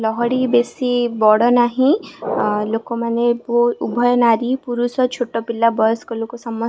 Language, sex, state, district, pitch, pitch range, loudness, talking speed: Odia, female, Odisha, Khordha, 240 Hz, 230-245 Hz, -18 LUFS, 125 wpm